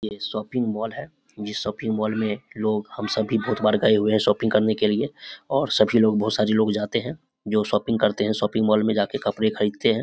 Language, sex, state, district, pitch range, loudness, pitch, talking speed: Hindi, male, Bihar, Samastipur, 105-110 Hz, -23 LUFS, 110 Hz, 240 wpm